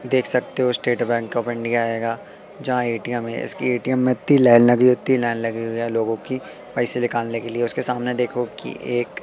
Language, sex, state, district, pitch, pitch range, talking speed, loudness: Hindi, male, Madhya Pradesh, Katni, 120 Hz, 115-125 Hz, 215 wpm, -19 LUFS